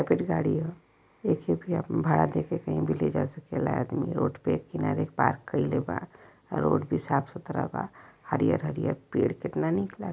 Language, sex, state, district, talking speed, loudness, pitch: Bhojpuri, female, Uttar Pradesh, Varanasi, 185 wpm, -29 LUFS, 160 Hz